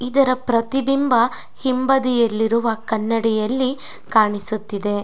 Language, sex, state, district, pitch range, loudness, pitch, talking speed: Kannada, female, Karnataka, Dakshina Kannada, 220-255 Hz, -19 LUFS, 230 Hz, 60 wpm